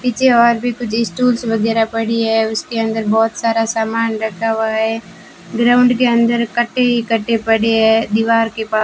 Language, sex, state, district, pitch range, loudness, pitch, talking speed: Hindi, female, Rajasthan, Bikaner, 225-235 Hz, -15 LUFS, 225 Hz, 185 wpm